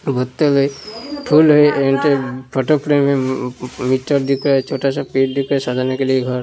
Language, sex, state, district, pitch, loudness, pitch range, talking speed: Hindi, male, Uttar Pradesh, Hamirpur, 135 Hz, -16 LUFS, 130-145 Hz, 235 wpm